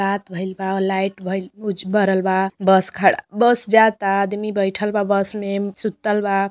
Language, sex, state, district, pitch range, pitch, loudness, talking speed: Bhojpuri, female, Uttar Pradesh, Deoria, 190-210 Hz, 195 Hz, -19 LUFS, 175 wpm